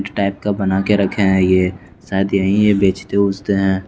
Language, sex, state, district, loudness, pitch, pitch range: Hindi, male, Bihar, West Champaran, -16 LUFS, 95 Hz, 95-100 Hz